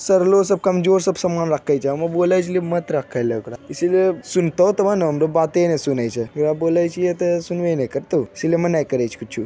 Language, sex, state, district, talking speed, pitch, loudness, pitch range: Magahi, male, Bihar, Jamui, 230 wpm, 170 Hz, -19 LUFS, 150-180 Hz